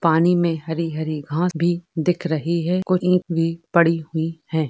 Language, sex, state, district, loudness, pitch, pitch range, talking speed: Hindi, female, Uttar Pradesh, Etah, -21 LUFS, 165 Hz, 160-175 Hz, 190 wpm